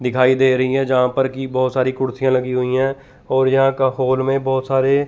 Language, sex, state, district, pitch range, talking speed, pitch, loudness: Hindi, male, Chandigarh, Chandigarh, 130-135 Hz, 235 wpm, 130 Hz, -17 LUFS